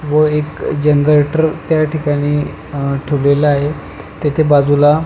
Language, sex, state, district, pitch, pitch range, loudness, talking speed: Marathi, male, Maharashtra, Pune, 150 Hz, 145-155 Hz, -14 LUFS, 130 wpm